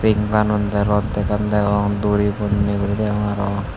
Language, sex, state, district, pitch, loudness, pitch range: Chakma, male, Tripura, Unakoti, 105 Hz, -19 LUFS, 100-105 Hz